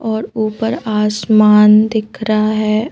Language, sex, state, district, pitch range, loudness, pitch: Hindi, female, Madhya Pradesh, Bhopal, 215-220 Hz, -13 LUFS, 215 Hz